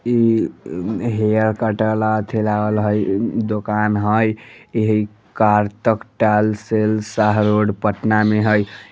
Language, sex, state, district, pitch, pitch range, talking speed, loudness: Bajjika, female, Bihar, Vaishali, 105 Hz, 105-110 Hz, 120 wpm, -18 LUFS